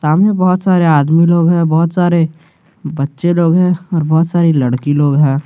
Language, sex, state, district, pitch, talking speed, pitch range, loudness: Hindi, male, Jharkhand, Garhwa, 165 Hz, 185 wpm, 150-175 Hz, -12 LUFS